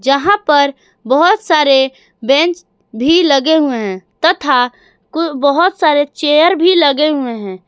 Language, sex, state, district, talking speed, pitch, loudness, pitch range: Hindi, female, Jharkhand, Garhwa, 135 wpm, 290 Hz, -12 LUFS, 260-330 Hz